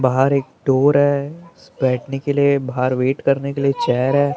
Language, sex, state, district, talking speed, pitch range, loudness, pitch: Hindi, male, Maharashtra, Mumbai Suburban, 220 wpm, 130-140 Hz, -18 LUFS, 140 Hz